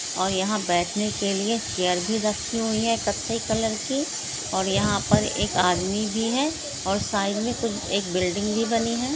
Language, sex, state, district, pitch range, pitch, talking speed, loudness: Hindi, female, Andhra Pradesh, Krishna, 195-230 Hz, 215 Hz, 190 wpm, -24 LUFS